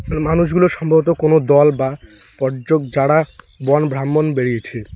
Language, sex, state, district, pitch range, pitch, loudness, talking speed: Bengali, male, West Bengal, Alipurduar, 135-160 Hz, 150 Hz, -16 LUFS, 135 wpm